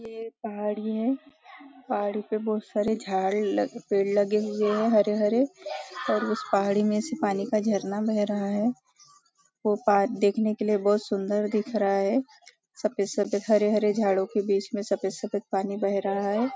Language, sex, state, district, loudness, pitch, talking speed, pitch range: Hindi, female, Maharashtra, Nagpur, -26 LUFS, 210 Hz, 180 wpm, 200-220 Hz